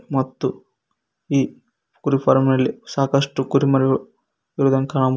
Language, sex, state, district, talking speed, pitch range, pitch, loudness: Kannada, male, Karnataka, Koppal, 115 wpm, 135-140 Hz, 135 Hz, -20 LUFS